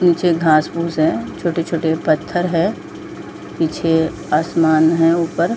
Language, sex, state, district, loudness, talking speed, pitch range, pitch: Hindi, female, Jharkhand, Jamtara, -17 LUFS, 150 wpm, 160-170 Hz, 165 Hz